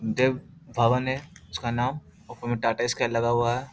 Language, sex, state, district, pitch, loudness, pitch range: Hindi, male, Bihar, Jahanabad, 120 Hz, -26 LUFS, 115-130 Hz